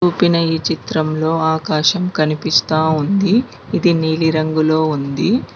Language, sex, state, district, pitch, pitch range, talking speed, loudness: Telugu, female, Telangana, Mahabubabad, 160 Hz, 155-175 Hz, 110 wpm, -16 LUFS